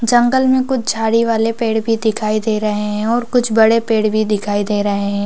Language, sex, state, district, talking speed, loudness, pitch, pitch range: Hindi, female, Chhattisgarh, Raigarh, 230 wpm, -16 LUFS, 220 Hz, 215-230 Hz